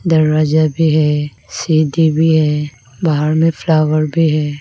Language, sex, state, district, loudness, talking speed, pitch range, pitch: Hindi, female, Arunachal Pradesh, Lower Dibang Valley, -14 LUFS, 145 wpm, 150-160 Hz, 155 Hz